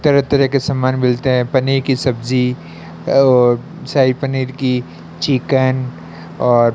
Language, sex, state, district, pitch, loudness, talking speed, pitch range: Hindi, male, Rajasthan, Bikaner, 130 Hz, -16 LUFS, 135 wpm, 120-135 Hz